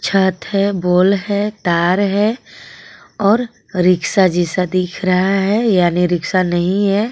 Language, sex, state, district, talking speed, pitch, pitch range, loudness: Hindi, female, Jharkhand, Garhwa, 135 wpm, 190 Hz, 180-200 Hz, -15 LUFS